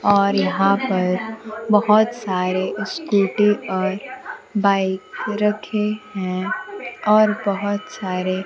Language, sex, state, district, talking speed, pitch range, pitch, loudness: Hindi, female, Bihar, Kaimur, 90 wpm, 190-215 Hz, 205 Hz, -20 LUFS